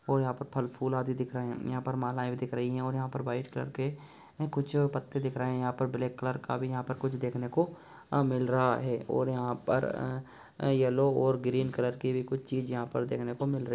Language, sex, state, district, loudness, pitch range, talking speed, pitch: Hindi, male, Bihar, Begusarai, -32 LUFS, 125-135 Hz, 225 wpm, 130 Hz